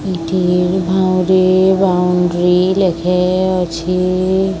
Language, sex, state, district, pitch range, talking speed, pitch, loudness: Odia, male, Odisha, Sambalpur, 180-185 Hz, 65 wpm, 180 Hz, -14 LUFS